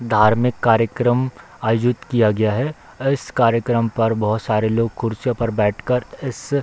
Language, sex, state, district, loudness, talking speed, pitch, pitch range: Hindi, male, Bihar, Darbhanga, -19 LUFS, 165 wpm, 115 Hz, 110-125 Hz